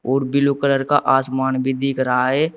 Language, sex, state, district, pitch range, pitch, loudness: Hindi, male, Uttar Pradesh, Saharanpur, 130-140 Hz, 135 Hz, -18 LUFS